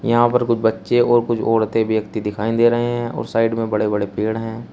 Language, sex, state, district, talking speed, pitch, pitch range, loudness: Hindi, male, Uttar Pradesh, Shamli, 240 wpm, 115 Hz, 110-120 Hz, -19 LUFS